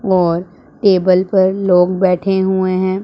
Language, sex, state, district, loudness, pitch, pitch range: Hindi, female, Punjab, Pathankot, -14 LUFS, 185 Hz, 180-190 Hz